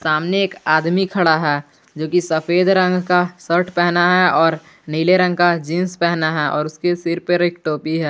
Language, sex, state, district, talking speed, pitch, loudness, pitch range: Hindi, male, Jharkhand, Garhwa, 150 wpm, 175 Hz, -17 LUFS, 155-180 Hz